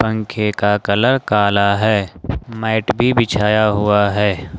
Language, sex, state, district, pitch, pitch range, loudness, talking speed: Hindi, male, Jharkhand, Ranchi, 105 Hz, 100-110 Hz, -16 LUFS, 130 wpm